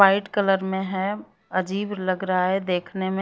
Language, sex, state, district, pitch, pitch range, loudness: Hindi, female, Chhattisgarh, Raipur, 190 Hz, 185-195 Hz, -24 LUFS